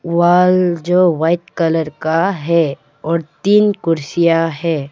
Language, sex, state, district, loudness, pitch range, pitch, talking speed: Hindi, female, Arunachal Pradesh, Papum Pare, -15 LUFS, 160-175 Hz, 165 Hz, 120 wpm